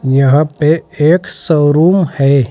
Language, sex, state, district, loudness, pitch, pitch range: Hindi, male, Uttar Pradesh, Saharanpur, -11 LUFS, 150 Hz, 140-165 Hz